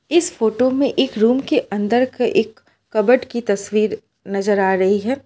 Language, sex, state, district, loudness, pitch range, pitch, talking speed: Hindi, female, Gujarat, Valsad, -18 LUFS, 205-255 Hz, 230 Hz, 180 wpm